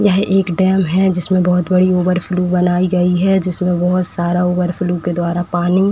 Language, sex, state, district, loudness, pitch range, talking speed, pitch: Hindi, female, Uttar Pradesh, Etah, -15 LUFS, 180-185 Hz, 190 wpm, 180 Hz